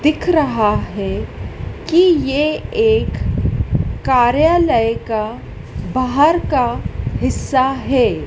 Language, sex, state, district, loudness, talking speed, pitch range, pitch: Hindi, female, Madhya Pradesh, Dhar, -16 LUFS, 85 wpm, 240-325 Hz, 275 Hz